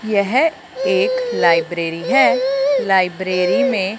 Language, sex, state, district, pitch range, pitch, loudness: Hindi, male, Punjab, Fazilka, 180-270 Hz, 200 Hz, -17 LUFS